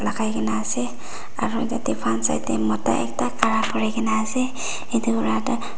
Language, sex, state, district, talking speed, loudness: Nagamese, female, Nagaland, Dimapur, 165 wpm, -23 LUFS